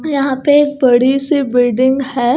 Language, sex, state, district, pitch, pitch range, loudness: Hindi, female, Punjab, Kapurthala, 270 Hz, 250-290 Hz, -13 LUFS